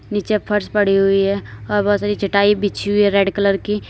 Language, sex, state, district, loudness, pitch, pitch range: Hindi, female, Uttar Pradesh, Lalitpur, -17 LUFS, 205 Hz, 200-205 Hz